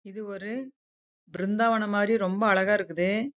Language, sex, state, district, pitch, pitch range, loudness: Tamil, female, Karnataka, Chamarajanagar, 210 Hz, 195-225 Hz, -26 LUFS